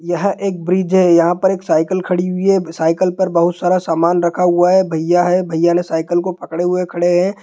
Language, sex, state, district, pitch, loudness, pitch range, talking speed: Hindi, male, Bihar, Jahanabad, 175 Hz, -15 LUFS, 170-185 Hz, 235 wpm